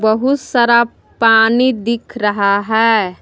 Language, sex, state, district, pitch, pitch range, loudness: Hindi, female, Jharkhand, Palamu, 225 Hz, 215-235 Hz, -14 LUFS